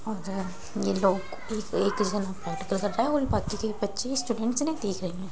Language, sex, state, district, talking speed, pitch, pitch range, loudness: Hindi, female, Uttar Pradesh, Muzaffarnagar, 160 wpm, 205 Hz, 195-225 Hz, -29 LUFS